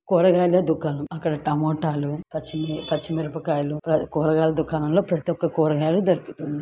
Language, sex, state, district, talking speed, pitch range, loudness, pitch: Telugu, female, Andhra Pradesh, Guntur, 125 wpm, 155-165 Hz, -23 LUFS, 155 Hz